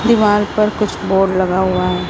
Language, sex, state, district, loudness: Hindi, female, Chhattisgarh, Raipur, -15 LUFS